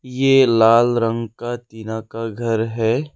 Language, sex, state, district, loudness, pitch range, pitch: Hindi, male, Arunachal Pradesh, Lower Dibang Valley, -18 LUFS, 115-120 Hz, 115 Hz